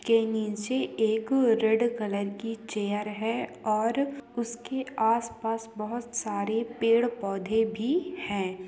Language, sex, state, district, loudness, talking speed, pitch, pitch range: Hindi, female, Uttarakhand, Tehri Garhwal, -28 LUFS, 115 wpm, 225 Hz, 215-235 Hz